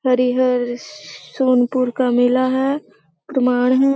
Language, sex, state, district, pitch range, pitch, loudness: Hindi, female, Bihar, Sitamarhi, 245-260 Hz, 255 Hz, -18 LUFS